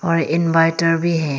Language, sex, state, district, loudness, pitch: Hindi, female, Arunachal Pradesh, Longding, -17 LUFS, 165 Hz